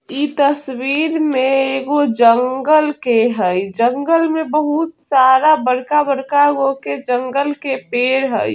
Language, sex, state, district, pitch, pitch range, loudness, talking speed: Bajjika, female, Bihar, Vaishali, 275 Hz, 255-295 Hz, -15 LUFS, 125 wpm